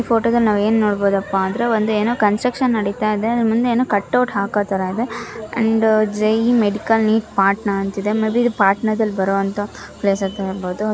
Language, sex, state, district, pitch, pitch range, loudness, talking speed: Kannada, female, Karnataka, Shimoga, 215 Hz, 200-225 Hz, -18 LUFS, 175 wpm